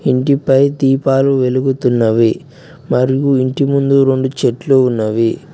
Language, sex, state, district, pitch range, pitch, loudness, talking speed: Telugu, male, Telangana, Mahabubabad, 125-140 Hz, 135 Hz, -13 LUFS, 95 wpm